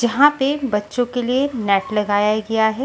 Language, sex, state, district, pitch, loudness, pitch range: Hindi, female, Haryana, Jhajjar, 235 Hz, -18 LUFS, 210-265 Hz